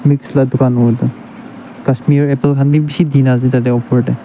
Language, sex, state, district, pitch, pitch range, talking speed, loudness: Nagamese, male, Nagaland, Dimapur, 140 Hz, 125-150 Hz, 195 wpm, -13 LUFS